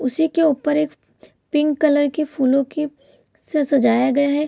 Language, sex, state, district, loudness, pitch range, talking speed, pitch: Hindi, female, Bihar, Kishanganj, -19 LUFS, 275-300 Hz, 175 wpm, 295 Hz